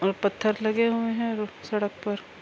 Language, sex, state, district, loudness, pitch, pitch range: Urdu, female, Andhra Pradesh, Anantapur, -27 LUFS, 215 Hz, 205-225 Hz